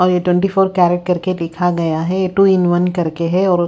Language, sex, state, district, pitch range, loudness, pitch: Hindi, female, Haryana, Rohtak, 175-185 Hz, -15 LUFS, 180 Hz